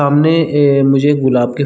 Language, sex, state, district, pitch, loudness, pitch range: Hindi, male, Chhattisgarh, Rajnandgaon, 145 Hz, -12 LUFS, 135-145 Hz